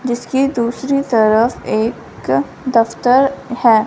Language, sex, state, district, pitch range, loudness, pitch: Hindi, female, Punjab, Fazilka, 220-260 Hz, -16 LUFS, 235 Hz